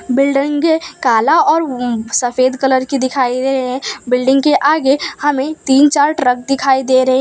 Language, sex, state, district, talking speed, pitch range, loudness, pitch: Hindi, female, Gujarat, Valsad, 185 wpm, 255-290 Hz, -14 LUFS, 270 Hz